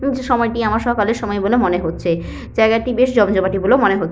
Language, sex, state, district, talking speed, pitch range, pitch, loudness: Bengali, female, West Bengal, Paschim Medinipur, 205 wpm, 195-245 Hz, 220 Hz, -17 LUFS